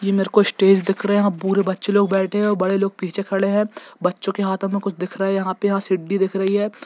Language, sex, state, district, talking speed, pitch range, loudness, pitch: Hindi, male, Jharkhand, Jamtara, 280 wpm, 195-200 Hz, -20 LUFS, 195 Hz